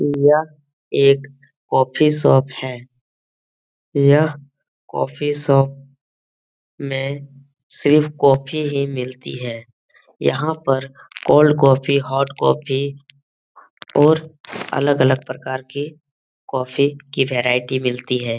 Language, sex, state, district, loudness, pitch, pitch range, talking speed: Hindi, male, Bihar, Jamui, -18 LUFS, 140 Hz, 130-145 Hz, 100 wpm